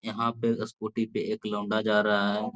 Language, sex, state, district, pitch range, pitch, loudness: Hindi, male, Bihar, Jahanabad, 105-115 Hz, 110 Hz, -28 LUFS